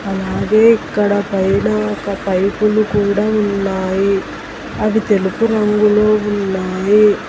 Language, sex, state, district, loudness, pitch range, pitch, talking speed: Telugu, female, Telangana, Hyderabad, -15 LUFS, 190-210 Hz, 205 Hz, 90 wpm